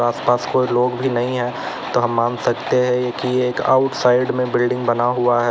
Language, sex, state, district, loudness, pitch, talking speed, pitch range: Hindi, male, Uttar Pradesh, Lalitpur, -18 LUFS, 125 Hz, 220 wpm, 120-125 Hz